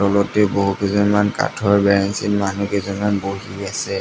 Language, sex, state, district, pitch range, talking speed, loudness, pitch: Assamese, male, Assam, Sonitpur, 100-105 Hz, 135 wpm, -19 LUFS, 100 Hz